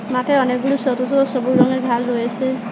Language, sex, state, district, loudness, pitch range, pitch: Bengali, male, West Bengal, Alipurduar, -18 LUFS, 250-260 Hz, 255 Hz